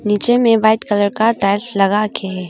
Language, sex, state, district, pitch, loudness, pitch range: Hindi, female, Arunachal Pradesh, Longding, 210 Hz, -15 LUFS, 200-225 Hz